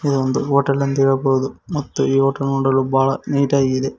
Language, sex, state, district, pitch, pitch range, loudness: Kannada, male, Karnataka, Koppal, 135 Hz, 135-140 Hz, -18 LUFS